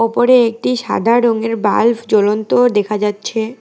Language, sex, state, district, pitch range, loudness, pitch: Bengali, female, West Bengal, Alipurduar, 215-235 Hz, -14 LUFS, 225 Hz